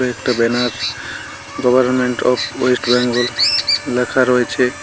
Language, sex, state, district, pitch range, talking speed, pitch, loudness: Bengali, male, West Bengal, Cooch Behar, 120-125 Hz, 100 wpm, 125 Hz, -16 LUFS